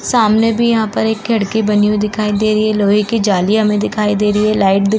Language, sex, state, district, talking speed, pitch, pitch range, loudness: Hindi, female, Uttar Pradesh, Varanasi, 275 wpm, 215 Hz, 210-220 Hz, -14 LUFS